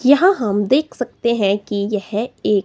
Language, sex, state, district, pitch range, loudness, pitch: Hindi, female, Himachal Pradesh, Shimla, 205-255 Hz, -18 LUFS, 215 Hz